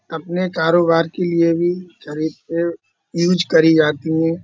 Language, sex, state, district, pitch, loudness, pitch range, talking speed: Hindi, male, Uttar Pradesh, Budaun, 165 Hz, -17 LUFS, 160-175 Hz, 135 wpm